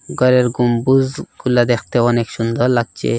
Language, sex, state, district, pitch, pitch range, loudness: Bengali, male, Assam, Hailakandi, 120 Hz, 120-125 Hz, -16 LUFS